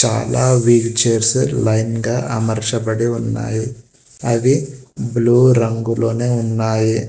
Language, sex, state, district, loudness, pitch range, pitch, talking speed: Telugu, male, Telangana, Hyderabad, -16 LUFS, 115-120 Hz, 115 Hz, 95 wpm